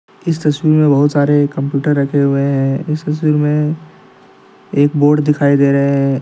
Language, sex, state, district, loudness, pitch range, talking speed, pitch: Hindi, male, Jharkhand, Deoghar, -14 LUFS, 140-150 Hz, 175 wpm, 145 Hz